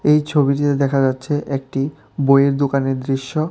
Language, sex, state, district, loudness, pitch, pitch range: Bengali, male, Tripura, West Tripura, -18 LUFS, 140 Hz, 135-145 Hz